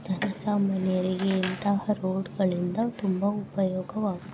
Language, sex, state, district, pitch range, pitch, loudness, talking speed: Kannada, female, Karnataka, Gulbarga, 185-205 Hz, 195 Hz, -28 LUFS, 95 wpm